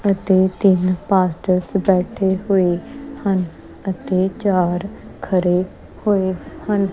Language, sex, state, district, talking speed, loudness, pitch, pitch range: Punjabi, female, Punjab, Kapurthala, 95 wpm, -19 LUFS, 190 Hz, 185-195 Hz